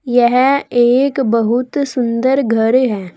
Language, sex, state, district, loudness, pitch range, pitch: Hindi, female, Uttar Pradesh, Saharanpur, -14 LUFS, 230-265 Hz, 245 Hz